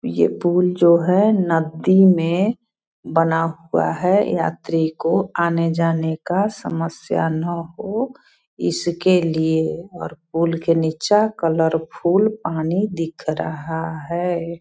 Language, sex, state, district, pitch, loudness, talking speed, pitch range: Hindi, female, Bihar, Sitamarhi, 170 Hz, -19 LUFS, 110 wpm, 165-185 Hz